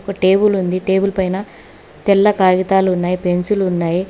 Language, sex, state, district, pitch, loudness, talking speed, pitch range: Telugu, female, Telangana, Hyderabad, 190 Hz, -15 LUFS, 130 wpm, 180-195 Hz